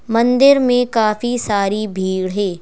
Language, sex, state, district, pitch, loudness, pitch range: Hindi, female, Madhya Pradesh, Bhopal, 215 Hz, -16 LUFS, 195-245 Hz